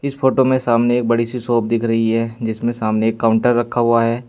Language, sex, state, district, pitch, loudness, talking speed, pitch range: Hindi, male, Uttar Pradesh, Saharanpur, 115 Hz, -17 LUFS, 250 wpm, 115-120 Hz